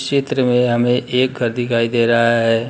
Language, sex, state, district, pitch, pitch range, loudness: Hindi, male, Bihar, Jahanabad, 120 Hz, 115-125 Hz, -16 LUFS